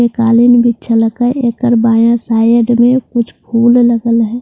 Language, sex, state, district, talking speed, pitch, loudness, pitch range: Hindi, female, Bihar, Katihar, 190 wpm, 235 Hz, -11 LUFS, 230-240 Hz